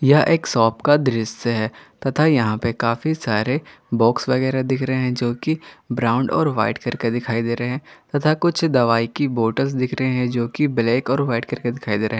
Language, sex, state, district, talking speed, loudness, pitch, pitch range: Hindi, male, Jharkhand, Garhwa, 215 wpm, -20 LUFS, 125 Hz, 115-140 Hz